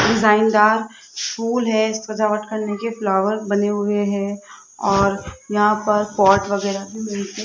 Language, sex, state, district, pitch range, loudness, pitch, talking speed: Hindi, female, Rajasthan, Jaipur, 200-220 Hz, -19 LUFS, 210 Hz, 155 wpm